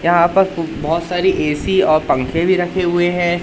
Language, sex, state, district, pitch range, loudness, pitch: Hindi, male, Madhya Pradesh, Katni, 165-180 Hz, -16 LUFS, 175 Hz